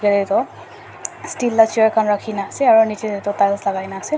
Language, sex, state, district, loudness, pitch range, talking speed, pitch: Nagamese, male, Nagaland, Dimapur, -17 LUFS, 200-225 Hz, 245 wpm, 210 Hz